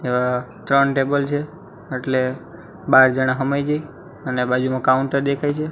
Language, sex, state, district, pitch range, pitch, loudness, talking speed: Gujarati, male, Gujarat, Gandhinagar, 130-145 Hz, 135 Hz, -20 LUFS, 145 wpm